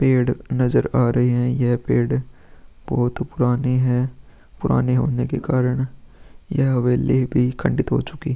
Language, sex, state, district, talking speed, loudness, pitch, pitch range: Hindi, male, Uttar Pradesh, Hamirpur, 150 wpm, -20 LUFS, 125 Hz, 125-130 Hz